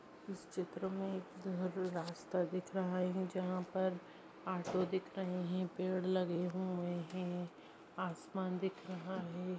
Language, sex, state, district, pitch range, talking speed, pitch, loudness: Hindi, female, Maharashtra, Nagpur, 180-185 Hz, 145 wpm, 185 Hz, -41 LUFS